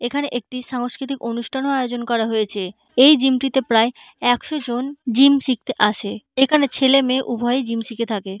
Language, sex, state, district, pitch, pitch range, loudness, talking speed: Bengali, female, West Bengal, Malda, 245 Hz, 230-270 Hz, -19 LUFS, 150 wpm